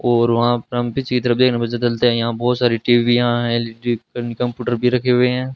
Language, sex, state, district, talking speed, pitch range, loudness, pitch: Hindi, male, Rajasthan, Bikaner, 150 wpm, 120-125 Hz, -18 LUFS, 120 Hz